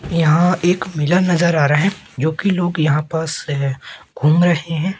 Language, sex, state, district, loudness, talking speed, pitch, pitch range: Hindi, male, Madhya Pradesh, Katni, -17 LUFS, 180 wpm, 165 Hz, 150-175 Hz